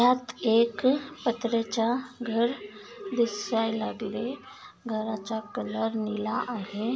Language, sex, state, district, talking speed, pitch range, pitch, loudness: Marathi, female, Maharashtra, Nagpur, 85 wpm, 215-245 Hz, 225 Hz, -29 LUFS